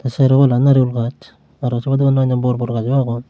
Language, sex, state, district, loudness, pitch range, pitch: Chakma, male, Tripura, Unakoti, -16 LUFS, 120-135 Hz, 130 Hz